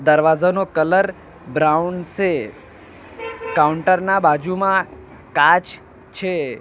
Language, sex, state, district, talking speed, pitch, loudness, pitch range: Gujarati, male, Gujarat, Valsad, 80 wpm, 185 Hz, -18 LUFS, 160-195 Hz